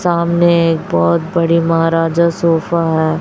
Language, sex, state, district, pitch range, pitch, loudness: Hindi, female, Chhattisgarh, Raipur, 165-170 Hz, 165 Hz, -14 LUFS